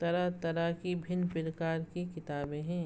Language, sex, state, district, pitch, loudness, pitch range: Hindi, female, Chhattisgarh, Raigarh, 170 Hz, -35 LUFS, 165-175 Hz